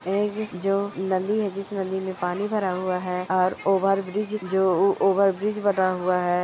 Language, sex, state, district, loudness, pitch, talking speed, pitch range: Hindi, female, Chhattisgarh, Korba, -24 LUFS, 190 Hz, 165 wpm, 185-200 Hz